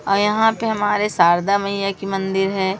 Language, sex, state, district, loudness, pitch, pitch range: Hindi, female, Madhya Pradesh, Umaria, -18 LUFS, 200 Hz, 195-205 Hz